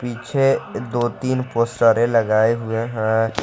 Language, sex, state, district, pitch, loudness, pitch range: Hindi, male, Jharkhand, Garhwa, 115 Hz, -19 LUFS, 110-120 Hz